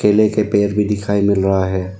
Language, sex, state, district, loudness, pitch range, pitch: Hindi, male, Arunachal Pradesh, Lower Dibang Valley, -16 LUFS, 95-105 Hz, 100 Hz